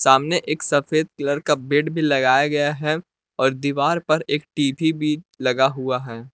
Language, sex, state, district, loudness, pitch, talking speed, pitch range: Hindi, male, Jharkhand, Palamu, -21 LUFS, 145 Hz, 180 wpm, 135-155 Hz